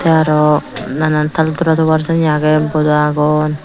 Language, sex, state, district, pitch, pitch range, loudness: Chakma, female, Tripura, Dhalai, 155 Hz, 150-160 Hz, -14 LUFS